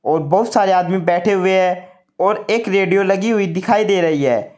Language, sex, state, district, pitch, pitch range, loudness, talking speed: Hindi, male, Uttar Pradesh, Saharanpur, 190 Hz, 180-205 Hz, -16 LUFS, 210 wpm